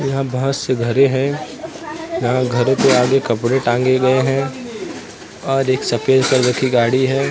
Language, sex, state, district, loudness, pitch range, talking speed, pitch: Hindi, male, Maharashtra, Mumbai Suburban, -16 LUFS, 125-135 Hz, 165 wpm, 130 Hz